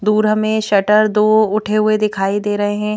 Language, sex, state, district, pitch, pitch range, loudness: Hindi, female, Madhya Pradesh, Bhopal, 215 Hz, 205-215 Hz, -15 LUFS